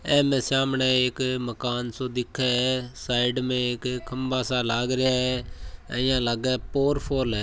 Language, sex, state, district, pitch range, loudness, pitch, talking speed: Marwari, male, Rajasthan, Churu, 120-130 Hz, -25 LUFS, 125 Hz, 155 wpm